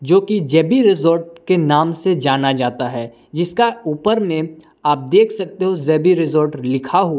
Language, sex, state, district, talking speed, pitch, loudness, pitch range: Hindi, male, Jharkhand, Palamu, 175 wpm, 165 Hz, -16 LUFS, 145-190 Hz